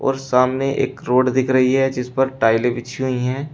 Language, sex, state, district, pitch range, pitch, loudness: Hindi, male, Uttar Pradesh, Shamli, 125-135 Hz, 130 Hz, -18 LUFS